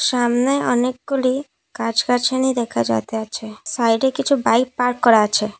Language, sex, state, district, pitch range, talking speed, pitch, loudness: Bengali, female, Assam, Kamrup Metropolitan, 225-260 Hz, 120 wpm, 245 Hz, -19 LUFS